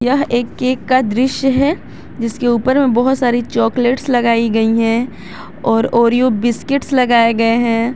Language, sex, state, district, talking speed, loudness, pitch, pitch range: Hindi, female, Jharkhand, Garhwa, 160 wpm, -14 LUFS, 240 Hz, 230-255 Hz